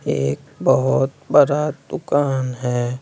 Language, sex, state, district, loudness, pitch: Hindi, male, Bihar, West Champaran, -19 LUFS, 125 Hz